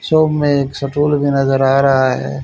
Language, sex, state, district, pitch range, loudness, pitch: Hindi, male, Haryana, Charkhi Dadri, 135-145 Hz, -14 LUFS, 140 Hz